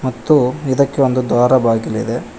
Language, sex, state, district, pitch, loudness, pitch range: Kannada, male, Karnataka, Koppal, 130 Hz, -15 LUFS, 120-135 Hz